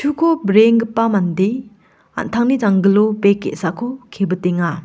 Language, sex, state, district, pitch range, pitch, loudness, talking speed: Garo, female, Meghalaya, West Garo Hills, 190-235 Hz, 210 Hz, -16 LUFS, 85 wpm